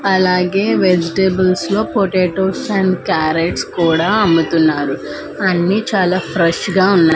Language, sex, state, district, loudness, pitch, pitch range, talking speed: Telugu, female, Andhra Pradesh, Manyam, -15 LUFS, 185 Hz, 170-190 Hz, 110 wpm